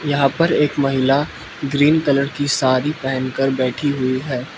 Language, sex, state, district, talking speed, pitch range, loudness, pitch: Hindi, male, Manipur, Imphal West, 170 wpm, 130-145 Hz, -18 LUFS, 140 Hz